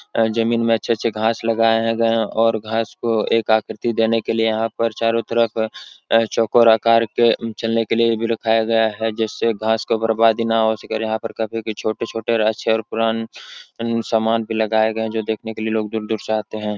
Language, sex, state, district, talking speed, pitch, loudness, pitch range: Hindi, male, Uttar Pradesh, Etah, 205 wpm, 115 Hz, -19 LUFS, 110-115 Hz